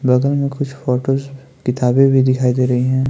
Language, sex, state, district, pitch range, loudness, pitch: Hindi, male, Uttarakhand, Tehri Garhwal, 125-135 Hz, -16 LUFS, 130 Hz